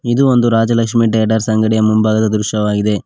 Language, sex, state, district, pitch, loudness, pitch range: Kannada, male, Karnataka, Koppal, 110 Hz, -13 LUFS, 110-115 Hz